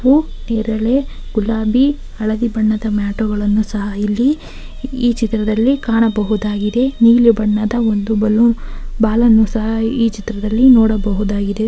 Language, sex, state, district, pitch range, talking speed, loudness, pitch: Kannada, female, Karnataka, Belgaum, 215-235 Hz, 100 wpm, -15 LUFS, 220 Hz